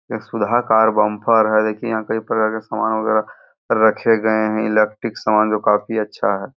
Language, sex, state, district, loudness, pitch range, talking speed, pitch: Hindi, male, Bihar, Araria, -18 LUFS, 105-110 Hz, 190 wpm, 110 Hz